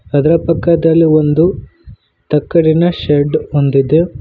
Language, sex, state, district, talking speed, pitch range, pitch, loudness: Kannada, male, Karnataka, Koppal, 85 wpm, 145-165 Hz, 155 Hz, -12 LUFS